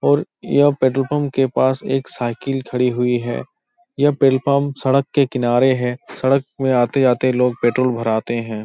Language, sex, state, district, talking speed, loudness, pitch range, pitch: Hindi, male, Uttar Pradesh, Etah, 180 wpm, -18 LUFS, 125-140 Hz, 130 Hz